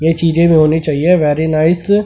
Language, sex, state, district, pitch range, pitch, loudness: Hindi, male, Delhi, New Delhi, 155-170 Hz, 160 Hz, -12 LUFS